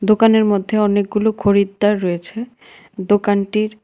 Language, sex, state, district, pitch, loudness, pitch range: Bengali, female, Tripura, West Tripura, 205 Hz, -16 LUFS, 200-215 Hz